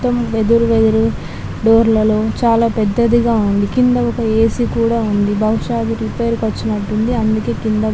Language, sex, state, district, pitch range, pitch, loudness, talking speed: Telugu, female, Telangana, Nalgonda, 215-230 Hz, 225 Hz, -15 LUFS, 175 wpm